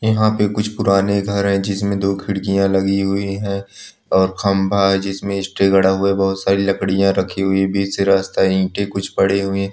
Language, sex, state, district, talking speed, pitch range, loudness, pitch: Hindi, male, Andhra Pradesh, Srikakulam, 215 wpm, 95-100 Hz, -17 LUFS, 100 Hz